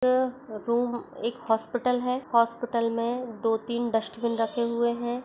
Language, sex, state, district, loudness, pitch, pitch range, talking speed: Hindi, female, Chhattisgarh, Kabirdham, -27 LUFS, 235 Hz, 230-245 Hz, 135 wpm